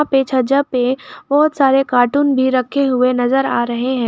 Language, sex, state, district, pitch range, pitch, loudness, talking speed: Hindi, female, Jharkhand, Garhwa, 250-280 Hz, 260 Hz, -15 LUFS, 190 wpm